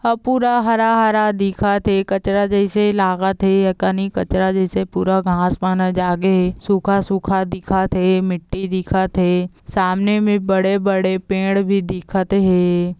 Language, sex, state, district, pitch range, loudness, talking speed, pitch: Chhattisgarhi, female, Chhattisgarh, Balrampur, 185-200 Hz, -17 LUFS, 145 wpm, 190 Hz